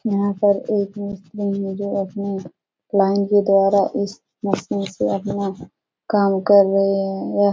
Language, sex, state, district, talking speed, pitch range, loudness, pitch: Hindi, male, Bihar, Supaul, 160 wpm, 195-200 Hz, -20 LUFS, 200 Hz